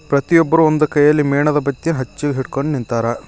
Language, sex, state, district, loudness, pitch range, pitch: Kannada, male, Karnataka, Koppal, -16 LUFS, 135-155 Hz, 145 Hz